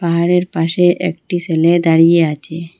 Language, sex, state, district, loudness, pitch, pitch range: Bengali, female, Assam, Hailakandi, -14 LUFS, 170 Hz, 165-175 Hz